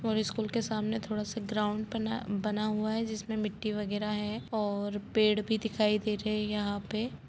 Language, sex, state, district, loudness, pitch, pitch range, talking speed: Hindi, female, Chhattisgarh, Rajnandgaon, -32 LUFS, 215 Hz, 210-220 Hz, 200 wpm